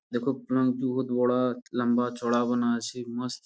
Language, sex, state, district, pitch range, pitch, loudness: Bengali, male, West Bengal, Purulia, 120-125 Hz, 125 Hz, -27 LUFS